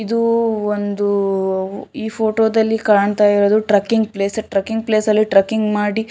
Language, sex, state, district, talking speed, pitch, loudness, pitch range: Kannada, female, Karnataka, Shimoga, 145 wpm, 215 Hz, -17 LUFS, 205-220 Hz